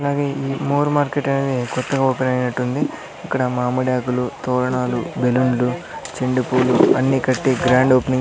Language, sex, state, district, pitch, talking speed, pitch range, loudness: Telugu, male, Andhra Pradesh, Sri Satya Sai, 130 Hz, 145 wpm, 125-135 Hz, -19 LUFS